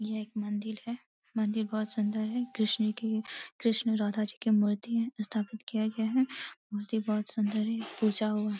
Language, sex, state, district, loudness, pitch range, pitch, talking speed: Hindi, female, Uttar Pradesh, Deoria, -32 LUFS, 215-225 Hz, 215 Hz, 195 wpm